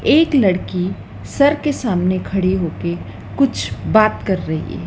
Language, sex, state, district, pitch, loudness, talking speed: Hindi, female, Madhya Pradesh, Dhar, 185 Hz, -18 LUFS, 150 wpm